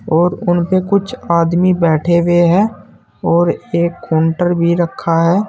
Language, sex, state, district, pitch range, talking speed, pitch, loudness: Hindi, male, Uttar Pradesh, Saharanpur, 170-185 Hz, 140 wpm, 170 Hz, -14 LUFS